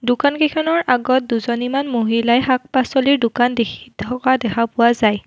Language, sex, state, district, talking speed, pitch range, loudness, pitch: Assamese, female, Assam, Kamrup Metropolitan, 150 wpm, 235-260 Hz, -17 LUFS, 245 Hz